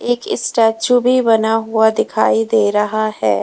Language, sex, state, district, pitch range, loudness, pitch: Hindi, female, Uttar Pradesh, Lalitpur, 205-230 Hz, -15 LUFS, 220 Hz